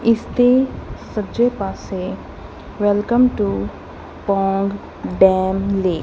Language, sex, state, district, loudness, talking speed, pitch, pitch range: Punjabi, female, Punjab, Kapurthala, -19 LUFS, 100 wpm, 200 Hz, 185-225 Hz